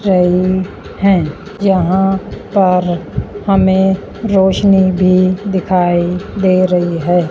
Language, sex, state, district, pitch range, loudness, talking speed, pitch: Hindi, female, Punjab, Fazilka, 180-195 Hz, -13 LUFS, 80 wpm, 185 Hz